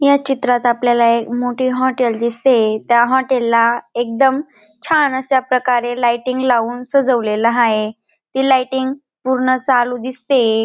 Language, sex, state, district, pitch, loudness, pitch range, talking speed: Marathi, female, Maharashtra, Dhule, 250 Hz, -16 LUFS, 235-260 Hz, 130 wpm